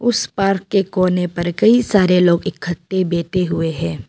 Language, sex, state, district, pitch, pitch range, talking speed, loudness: Hindi, female, Arunachal Pradesh, Papum Pare, 180 Hz, 175-195 Hz, 175 wpm, -17 LUFS